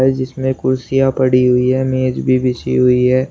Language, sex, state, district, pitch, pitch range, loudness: Hindi, male, Uttar Pradesh, Shamli, 130 Hz, 125-130 Hz, -15 LUFS